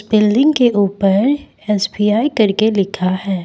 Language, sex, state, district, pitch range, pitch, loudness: Hindi, female, Assam, Kamrup Metropolitan, 195-220 Hz, 210 Hz, -15 LUFS